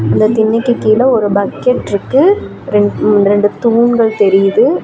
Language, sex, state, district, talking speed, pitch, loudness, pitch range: Tamil, female, Tamil Nadu, Namakkal, 110 wpm, 215 Hz, -11 LUFS, 200-240 Hz